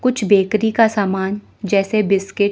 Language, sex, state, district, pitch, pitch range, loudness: Hindi, female, Chandigarh, Chandigarh, 205 Hz, 195-215 Hz, -17 LUFS